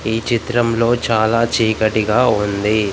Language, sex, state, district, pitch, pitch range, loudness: Telugu, male, Telangana, Komaram Bheem, 115 Hz, 110-120 Hz, -16 LUFS